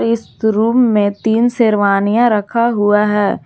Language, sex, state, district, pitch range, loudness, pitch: Hindi, female, Jharkhand, Garhwa, 205-230 Hz, -14 LUFS, 220 Hz